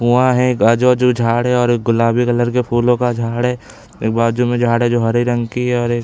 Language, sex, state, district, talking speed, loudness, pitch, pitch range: Hindi, male, Chhattisgarh, Bilaspur, 260 wpm, -15 LUFS, 120 Hz, 120-125 Hz